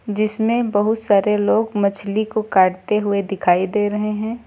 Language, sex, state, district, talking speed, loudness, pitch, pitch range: Hindi, female, Uttar Pradesh, Lucknow, 160 wpm, -18 LUFS, 210 Hz, 200-220 Hz